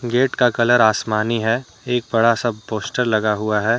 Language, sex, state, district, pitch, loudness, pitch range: Hindi, male, Jharkhand, Deoghar, 115 Hz, -18 LUFS, 110-125 Hz